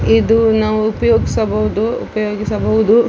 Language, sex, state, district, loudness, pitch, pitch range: Kannada, female, Karnataka, Dakshina Kannada, -15 LUFS, 220 Hz, 215-225 Hz